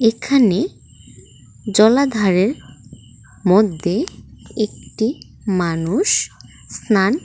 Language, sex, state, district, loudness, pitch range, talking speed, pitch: Bengali, female, Tripura, West Tripura, -18 LUFS, 135-225 Hz, 50 wpm, 195 Hz